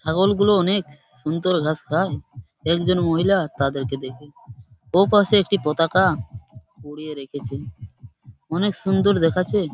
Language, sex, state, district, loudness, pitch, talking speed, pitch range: Bengali, male, West Bengal, Purulia, -20 LUFS, 165 Hz, 115 wpm, 140-190 Hz